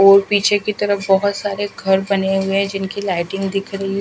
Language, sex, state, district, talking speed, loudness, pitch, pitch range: Hindi, female, Himachal Pradesh, Shimla, 210 wpm, -18 LUFS, 195 Hz, 195-200 Hz